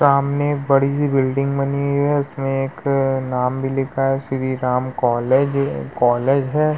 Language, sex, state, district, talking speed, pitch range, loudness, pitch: Hindi, male, Uttar Pradesh, Muzaffarnagar, 170 wpm, 130-140 Hz, -19 LUFS, 135 Hz